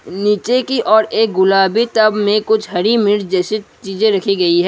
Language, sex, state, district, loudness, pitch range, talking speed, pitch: Hindi, male, Assam, Kamrup Metropolitan, -14 LUFS, 195-220 Hz, 190 wpm, 210 Hz